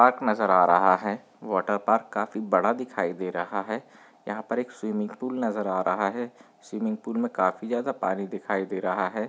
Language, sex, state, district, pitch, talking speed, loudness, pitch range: Hindi, male, Maharashtra, Chandrapur, 105 Hz, 205 wpm, -26 LUFS, 95-120 Hz